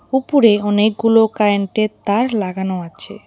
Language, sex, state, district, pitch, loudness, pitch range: Bengali, female, West Bengal, Alipurduar, 215 Hz, -16 LUFS, 200-225 Hz